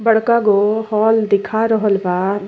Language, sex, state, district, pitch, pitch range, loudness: Bhojpuri, female, Uttar Pradesh, Deoria, 215 Hz, 200-225 Hz, -15 LUFS